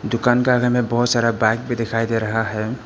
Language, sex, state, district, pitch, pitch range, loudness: Hindi, male, Arunachal Pradesh, Papum Pare, 115 Hz, 115-125 Hz, -19 LUFS